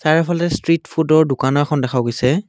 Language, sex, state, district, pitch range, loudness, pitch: Assamese, male, Assam, Kamrup Metropolitan, 130-165 Hz, -17 LUFS, 155 Hz